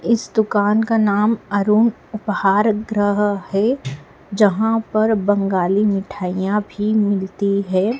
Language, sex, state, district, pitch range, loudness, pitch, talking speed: Hindi, female, Madhya Pradesh, Dhar, 195-215 Hz, -18 LUFS, 205 Hz, 110 wpm